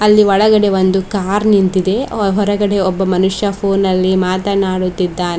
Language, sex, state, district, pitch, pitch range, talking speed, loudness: Kannada, female, Karnataka, Bidar, 195 Hz, 185-205 Hz, 110 wpm, -14 LUFS